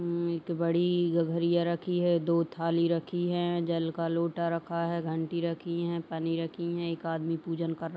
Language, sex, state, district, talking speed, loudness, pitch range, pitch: Hindi, female, Uttar Pradesh, Jalaun, 195 wpm, -30 LUFS, 165-170 Hz, 170 Hz